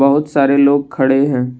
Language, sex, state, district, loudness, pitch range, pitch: Hindi, male, Assam, Kamrup Metropolitan, -14 LUFS, 130-140 Hz, 140 Hz